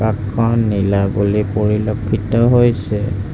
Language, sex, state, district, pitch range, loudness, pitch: Assamese, male, Assam, Sonitpur, 100-110 Hz, -16 LUFS, 105 Hz